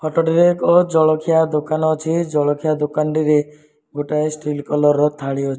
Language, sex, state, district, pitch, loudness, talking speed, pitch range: Odia, male, Odisha, Malkangiri, 150 Hz, -17 LUFS, 170 wpm, 150-160 Hz